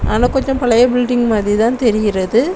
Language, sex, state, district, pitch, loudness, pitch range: Tamil, female, Tamil Nadu, Kanyakumari, 235 Hz, -14 LUFS, 215-245 Hz